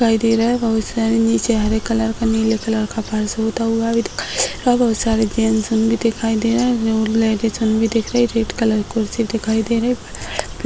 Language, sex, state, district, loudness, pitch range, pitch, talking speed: Hindi, female, Bihar, Sitamarhi, -18 LUFS, 220-230 Hz, 225 Hz, 190 wpm